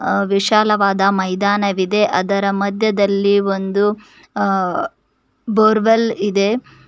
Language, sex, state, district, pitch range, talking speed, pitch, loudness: Kannada, female, Karnataka, Koppal, 195-215 Hz, 80 wpm, 200 Hz, -16 LUFS